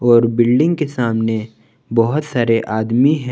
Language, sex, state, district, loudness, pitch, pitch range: Hindi, male, Jharkhand, Palamu, -16 LUFS, 120 Hz, 115-130 Hz